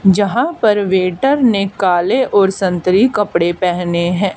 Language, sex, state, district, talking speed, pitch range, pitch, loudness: Hindi, female, Haryana, Charkhi Dadri, 140 wpm, 180-210 Hz, 195 Hz, -14 LUFS